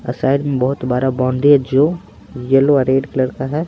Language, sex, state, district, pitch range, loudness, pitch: Hindi, male, Bihar, Patna, 130-140 Hz, -16 LUFS, 130 Hz